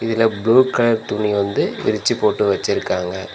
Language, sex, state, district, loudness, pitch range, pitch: Tamil, male, Tamil Nadu, Nilgiris, -18 LUFS, 100-115 Hz, 110 Hz